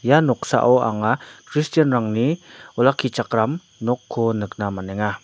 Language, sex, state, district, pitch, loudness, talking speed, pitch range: Garo, male, Meghalaya, North Garo Hills, 120 Hz, -21 LUFS, 90 wpm, 110-135 Hz